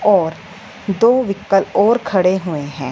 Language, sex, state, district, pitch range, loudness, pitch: Hindi, female, Punjab, Fazilka, 180-215 Hz, -16 LUFS, 195 Hz